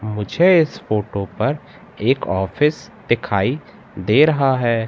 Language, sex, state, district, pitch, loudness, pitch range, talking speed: Hindi, male, Madhya Pradesh, Katni, 120 Hz, -18 LUFS, 105-150 Hz, 125 wpm